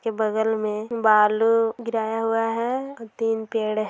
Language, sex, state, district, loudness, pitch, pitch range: Hindi, male, Bihar, Sitamarhi, -23 LUFS, 225 Hz, 220-230 Hz